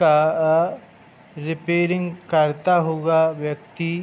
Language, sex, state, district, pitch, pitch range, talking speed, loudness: Hindi, male, Uttar Pradesh, Hamirpur, 160 Hz, 155-175 Hz, 75 wpm, -21 LUFS